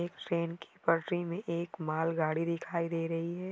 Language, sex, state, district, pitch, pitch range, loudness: Hindi, female, Maharashtra, Aurangabad, 170 Hz, 165-175 Hz, -34 LUFS